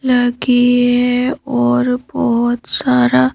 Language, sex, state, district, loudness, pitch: Hindi, female, Madhya Pradesh, Bhopal, -14 LUFS, 240 Hz